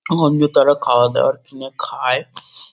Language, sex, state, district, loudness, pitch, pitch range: Bengali, male, West Bengal, Kolkata, -16 LUFS, 140 Hz, 135-150 Hz